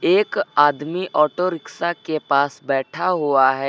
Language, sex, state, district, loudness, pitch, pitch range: Hindi, male, Uttar Pradesh, Lucknow, -20 LUFS, 150 Hz, 140-180 Hz